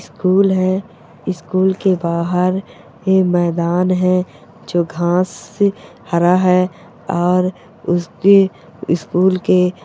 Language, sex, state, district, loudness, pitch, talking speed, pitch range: Hindi, female, Chhattisgarh, Bilaspur, -16 LUFS, 180 Hz, 95 wpm, 175-190 Hz